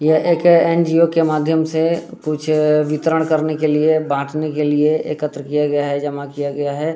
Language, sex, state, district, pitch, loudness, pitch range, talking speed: Hindi, male, Bihar, Muzaffarpur, 155 Hz, -17 LUFS, 150-160 Hz, 190 wpm